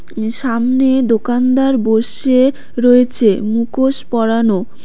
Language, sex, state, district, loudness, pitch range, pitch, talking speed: Bengali, female, West Bengal, Cooch Behar, -14 LUFS, 225-260 Hz, 245 Hz, 85 wpm